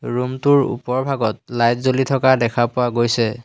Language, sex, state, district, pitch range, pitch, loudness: Assamese, male, Assam, Hailakandi, 120-130 Hz, 125 Hz, -18 LUFS